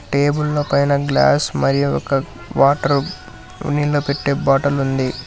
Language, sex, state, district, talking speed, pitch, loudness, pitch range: Telugu, male, Telangana, Hyderabad, 115 wpm, 140 Hz, -17 LUFS, 135-145 Hz